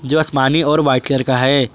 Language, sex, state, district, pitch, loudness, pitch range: Hindi, male, Jharkhand, Garhwa, 140 Hz, -15 LUFS, 130-150 Hz